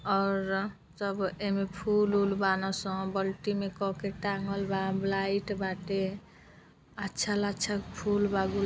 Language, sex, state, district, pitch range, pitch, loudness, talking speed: Bhojpuri, female, Uttar Pradesh, Deoria, 195-200 Hz, 195 Hz, -31 LUFS, 140 wpm